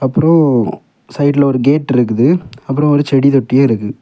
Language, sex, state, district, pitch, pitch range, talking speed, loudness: Tamil, male, Tamil Nadu, Kanyakumari, 135 Hz, 125-145 Hz, 150 wpm, -12 LUFS